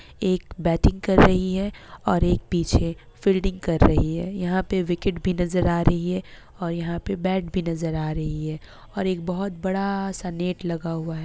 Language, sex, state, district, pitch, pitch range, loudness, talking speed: Hindi, female, Bihar, Kishanganj, 180 Hz, 170-190 Hz, -24 LUFS, 195 wpm